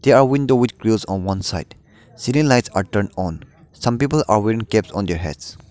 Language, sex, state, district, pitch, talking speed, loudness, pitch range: English, male, Nagaland, Dimapur, 105 Hz, 210 wpm, -19 LUFS, 95-125 Hz